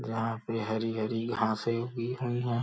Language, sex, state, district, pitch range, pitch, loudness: Hindi, male, Uttar Pradesh, Gorakhpur, 110-120 Hz, 115 Hz, -32 LUFS